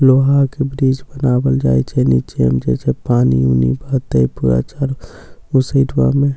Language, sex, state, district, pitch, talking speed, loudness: Maithili, male, Bihar, Katihar, 130 Hz, 170 wpm, -15 LUFS